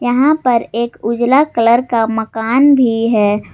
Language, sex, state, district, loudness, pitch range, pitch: Hindi, female, Jharkhand, Garhwa, -13 LUFS, 225-255 Hz, 235 Hz